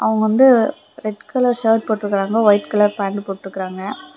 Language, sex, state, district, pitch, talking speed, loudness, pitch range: Tamil, female, Tamil Nadu, Kanyakumari, 215 Hz, 145 wpm, -17 LUFS, 200-225 Hz